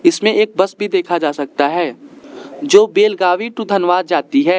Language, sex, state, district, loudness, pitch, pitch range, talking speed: Hindi, male, Arunachal Pradesh, Lower Dibang Valley, -15 LUFS, 200 Hz, 175-290 Hz, 180 wpm